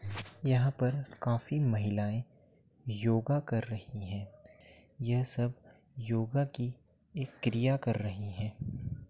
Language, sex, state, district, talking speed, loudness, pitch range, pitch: Hindi, male, Uttar Pradesh, Jyotiba Phule Nagar, 110 wpm, -34 LUFS, 110-130 Hz, 120 Hz